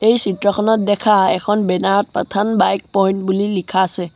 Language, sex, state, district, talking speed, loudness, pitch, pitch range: Assamese, male, Assam, Sonitpur, 175 wpm, -16 LUFS, 200 Hz, 190-210 Hz